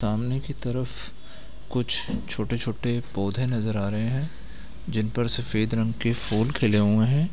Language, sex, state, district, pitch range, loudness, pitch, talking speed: Hindi, male, Bihar, Gaya, 110-125 Hz, -26 LUFS, 115 Hz, 155 wpm